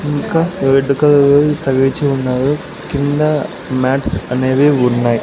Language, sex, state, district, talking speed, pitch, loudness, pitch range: Telugu, male, Andhra Pradesh, Sri Satya Sai, 105 wpm, 140 Hz, -14 LUFS, 130-150 Hz